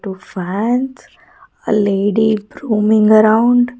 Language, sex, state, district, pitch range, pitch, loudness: English, female, Karnataka, Bangalore, 205-245 Hz, 215 Hz, -14 LUFS